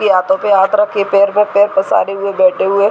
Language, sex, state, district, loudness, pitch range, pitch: Hindi, female, Bihar, Gaya, -12 LUFS, 195-210 Hz, 200 Hz